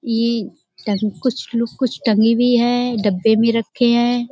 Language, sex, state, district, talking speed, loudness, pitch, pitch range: Hindi, female, Uttar Pradesh, Budaun, 165 wpm, -17 LUFS, 235 Hz, 220-245 Hz